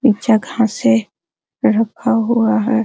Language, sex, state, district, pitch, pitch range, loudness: Hindi, female, Bihar, Araria, 225 Hz, 215-235 Hz, -16 LUFS